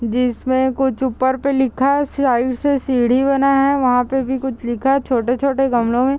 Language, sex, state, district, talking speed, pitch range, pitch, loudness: Hindi, female, Bihar, Muzaffarpur, 205 wpm, 250-275 Hz, 265 Hz, -17 LUFS